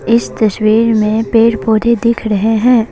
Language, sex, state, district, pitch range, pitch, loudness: Hindi, female, Assam, Kamrup Metropolitan, 215-230 Hz, 225 Hz, -12 LUFS